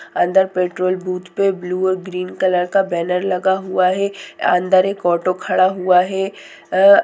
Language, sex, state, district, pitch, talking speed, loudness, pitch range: Hindi, female, Bihar, Sitamarhi, 185 Hz, 170 wpm, -17 LUFS, 180-190 Hz